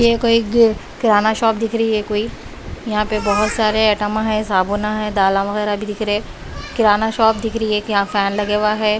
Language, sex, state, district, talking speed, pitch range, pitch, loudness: Hindi, female, Bihar, West Champaran, 215 wpm, 210-220 Hz, 215 Hz, -17 LUFS